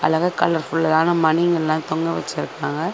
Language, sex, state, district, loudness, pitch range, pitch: Tamil, female, Tamil Nadu, Chennai, -20 LUFS, 160-165 Hz, 160 Hz